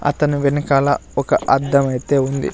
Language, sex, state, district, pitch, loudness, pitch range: Telugu, male, Andhra Pradesh, Sri Satya Sai, 140 Hz, -17 LUFS, 135-145 Hz